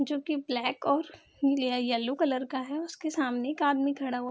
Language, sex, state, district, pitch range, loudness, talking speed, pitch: Hindi, female, Bihar, Madhepura, 250-295 Hz, -30 LUFS, 220 wpm, 275 Hz